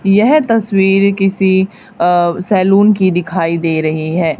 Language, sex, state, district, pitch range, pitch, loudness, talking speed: Hindi, female, Haryana, Charkhi Dadri, 170-200 Hz, 190 Hz, -12 LUFS, 135 wpm